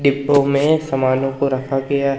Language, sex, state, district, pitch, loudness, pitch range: Hindi, male, Madhya Pradesh, Umaria, 140 Hz, -17 LUFS, 135-140 Hz